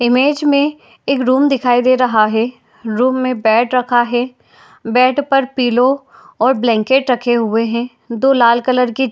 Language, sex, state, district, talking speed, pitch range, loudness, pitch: Hindi, female, Uttar Pradesh, Etah, 170 wpm, 235-260 Hz, -14 LUFS, 250 Hz